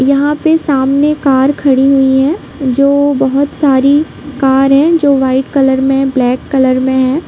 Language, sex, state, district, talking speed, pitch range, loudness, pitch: Hindi, female, Bihar, Sitamarhi, 165 wpm, 265-285 Hz, -10 LUFS, 275 Hz